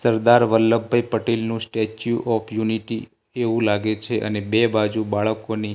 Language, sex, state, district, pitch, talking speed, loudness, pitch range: Gujarati, male, Gujarat, Gandhinagar, 110 Hz, 135 wpm, -21 LUFS, 110-115 Hz